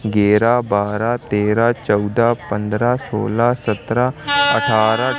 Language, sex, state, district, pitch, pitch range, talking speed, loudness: Hindi, male, Madhya Pradesh, Katni, 115 Hz, 105-125 Hz, 95 wpm, -17 LUFS